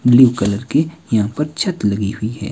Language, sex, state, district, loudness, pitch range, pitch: Hindi, male, Himachal Pradesh, Shimla, -17 LUFS, 105-150 Hz, 120 Hz